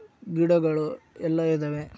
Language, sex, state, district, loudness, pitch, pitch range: Kannada, male, Karnataka, Raichur, -25 LUFS, 165 Hz, 155-170 Hz